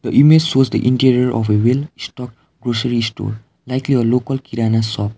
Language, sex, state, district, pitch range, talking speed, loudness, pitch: English, male, Sikkim, Gangtok, 115-130 Hz, 185 wpm, -16 LUFS, 125 Hz